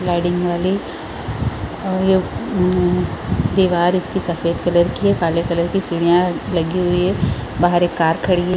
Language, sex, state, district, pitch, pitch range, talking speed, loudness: Hindi, female, Chhattisgarh, Raigarh, 175 Hz, 170-185 Hz, 170 wpm, -18 LUFS